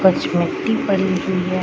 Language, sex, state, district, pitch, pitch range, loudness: Hindi, female, Bihar, Madhepura, 185 Hz, 180-190 Hz, -19 LUFS